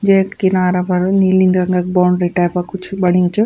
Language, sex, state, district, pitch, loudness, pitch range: Garhwali, female, Uttarakhand, Tehri Garhwal, 185 Hz, -15 LUFS, 180-190 Hz